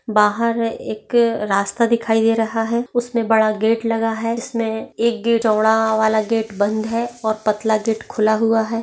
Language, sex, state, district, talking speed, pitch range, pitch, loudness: Hindi, female, Maharashtra, Pune, 165 wpm, 220-230 Hz, 225 Hz, -19 LUFS